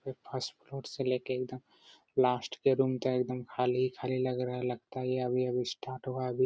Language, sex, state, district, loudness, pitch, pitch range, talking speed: Hindi, male, Bihar, Araria, -33 LUFS, 130 Hz, 125-130 Hz, 215 wpm